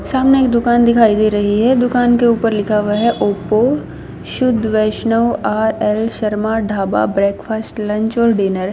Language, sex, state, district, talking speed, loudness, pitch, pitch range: Hindi, female, Himachal Pradesh, Shimla, 170 wpm, -15 LUFS, 220 Hz, 210-235 Hz